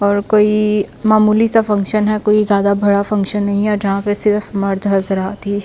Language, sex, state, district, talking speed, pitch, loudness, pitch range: Hindi, female, Delhi, New Delhi, 200 wpm, 205 Hz, -15 LUFS, 200-210 Hz